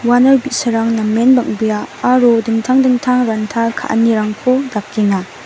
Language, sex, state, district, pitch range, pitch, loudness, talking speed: Garo, female, Meghalaya, West Garo Hills, 220-250 Hz, 230 Hz, -14 LUFS, 110 wpm